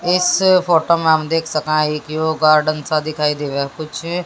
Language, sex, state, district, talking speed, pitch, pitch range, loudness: Hindi, female, Haryana, Jhajjar, 195 wpm, 155 Hz, 155-170 Hz, -17 LUFS